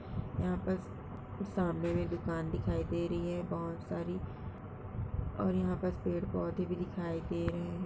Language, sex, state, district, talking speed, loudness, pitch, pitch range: Hindi, female, Uttar Pradesh, Budaun, 175 wpm, -37 LUFS, 90 Hz, 85-105 Hz